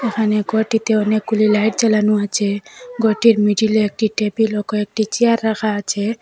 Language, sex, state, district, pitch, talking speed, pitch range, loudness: Bengali, female, Assam, Hailakandi, 215 Hz, 145 wpm, 210-220 Hz, -17 LUFS